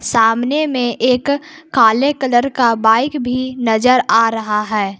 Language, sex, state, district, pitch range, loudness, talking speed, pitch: Hindi, female, Jharkhand, Palamu, 225-270 Hz, -15 LUFS, 145 wpm, 245 Hz